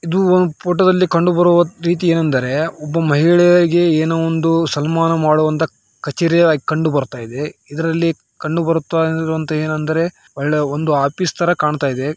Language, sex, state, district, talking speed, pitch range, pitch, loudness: Kannada, male, Karnataka, Raichur, 125 wpm, 150-170 Hz, 160 Hz, -16 LUFS